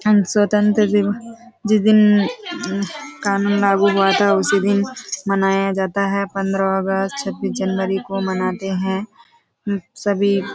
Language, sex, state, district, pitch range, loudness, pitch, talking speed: Hindi, female, Bihar, Kishanganj, 195-210 Hz, -18 LUFS, 200 Hz, 135 wpm